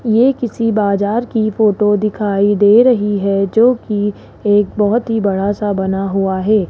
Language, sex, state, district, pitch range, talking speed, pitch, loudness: Hindi, male, Rajasthan, Jaipur, 200-225 Hz, 160 wpm, 210 Hz, -14 LUFS